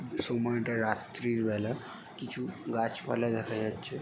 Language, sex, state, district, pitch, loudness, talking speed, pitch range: Bengali, male, West Bengal, Jalpaiguri, 115 Hz, -33 LUFS, 150 wpm, 110-120 Hz